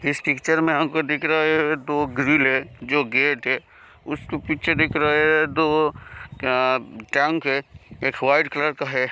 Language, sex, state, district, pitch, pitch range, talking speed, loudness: Hindi, male, Bihar, Kishanganj, 145 Hz, 135-155 Hz, 180 wpm, -21 LUFS